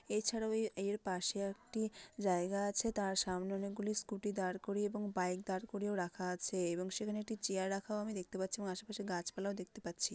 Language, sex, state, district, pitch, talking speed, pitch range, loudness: Bengali, female, West Bengal, Malda, 200 Hz, 205 wpm, 185-210 Hz, -39 LUFS